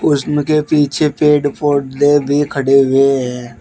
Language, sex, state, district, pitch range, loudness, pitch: Hindi, male, Uttar Pradesh, Shamli, 135-150 Hz, -14 LUFS, 145 Hz